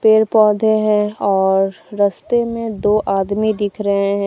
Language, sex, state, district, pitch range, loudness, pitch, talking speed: Hindi, female, Jharkhand, Deoghar, 200-220 Hz, -16 LUFS, 210 Hz, 155 wpm